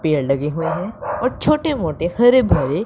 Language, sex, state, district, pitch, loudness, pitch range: Hindi, female, Punjab, Pathankot, 170 Hz, -18 LUFS, 155-255 Hz